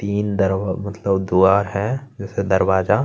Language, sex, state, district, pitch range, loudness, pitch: Hindi, male, Chhattisgarh, Kabirdham, 95-105 Hz, -19 LUFS, 100 Hz